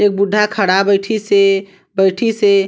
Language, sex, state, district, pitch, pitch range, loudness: Chhattisgarhi, female, Chhattisgarh, Sarguja, 200 Hz, 195-210 Hz, -14 LUFS